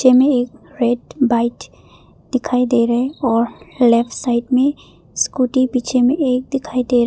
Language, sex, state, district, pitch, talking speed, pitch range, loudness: Hindi, female, Arunachal Pradesh, Papum Pare, 250 Hz, 170 wpm, 240-260 Hz, -17 LUFS